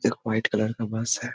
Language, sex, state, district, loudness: Hindi, male, Bihar, Muzaffarpur, -26 LUFS